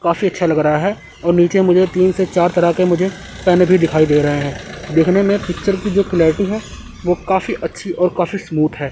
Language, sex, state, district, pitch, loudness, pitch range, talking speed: Hindi, male, Chandigarh, Chandigarh, 180 Hz, -16 LUFS, 165-190 Hz, 235 wpm